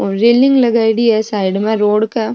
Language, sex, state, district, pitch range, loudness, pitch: Marwari, female, Rajasthan, Nagaur, 210-235 Hz, -13 LUFS, 220 Hz